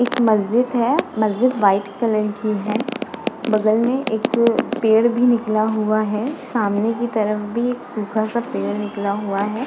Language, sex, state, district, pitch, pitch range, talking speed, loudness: Hindi, female, Uttar Pradesh, Muzaffarnagar, 220 Hz, 210-240 Hz, 165 wpm, -19 LUFS